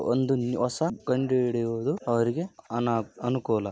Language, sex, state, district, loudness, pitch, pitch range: Kannada, male, Karnataka, Raichur, -27 LUFS, 125 Hz, 115-130 Hz